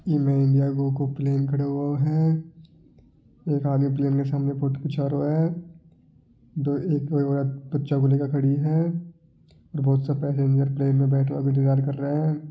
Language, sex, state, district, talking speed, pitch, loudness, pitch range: Marwari, male, Rajasthan, Nagaur, 175 wpm, 140 Hz, -24 LUFS, 140-150 Hz